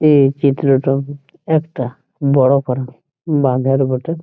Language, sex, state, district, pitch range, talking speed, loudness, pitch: Bengali, male, West Bengal, Jhargram, 135-145 Hz, 100 wpm, -16 LUFS, 140 Hz